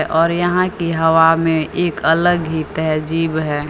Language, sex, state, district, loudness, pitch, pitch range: Hindi, female, Uttar Pradesh, Lucknow, -16 LUFS, 165 Hz, 160-170 Hz